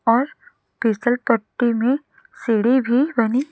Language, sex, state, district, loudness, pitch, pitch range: Hindi, female, Chhattisgarh, Raipur, -20 LUFS, 245 Hz, 230-285 Hz